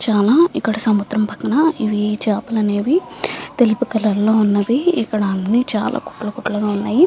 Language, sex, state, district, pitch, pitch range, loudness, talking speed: Telugu, female, Andhra Pradesh, Visakhapatnam, 215 Hz, 210-240 Hz, -17 LUFS, 145 wpm